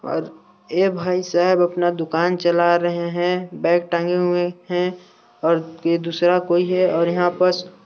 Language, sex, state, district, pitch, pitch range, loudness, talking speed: Hindi, male, Chhattisgarh, Sarguja, 175 Hz, 170-180 Hz, -20 LUFS, 155 wpm